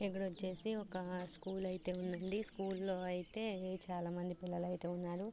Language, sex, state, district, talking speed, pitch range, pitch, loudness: Telugu, female, Andhra Pradesh, Guntur, 135 wpm, 180-195 Hz, 185 Hz, -43 LUFS